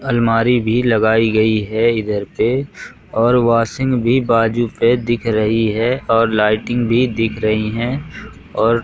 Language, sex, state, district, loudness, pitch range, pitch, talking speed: Hindi, male, Madhya Pradesh, Katni, -16 LUFS, 110-120 Hz, 115 Hz, 150 wpm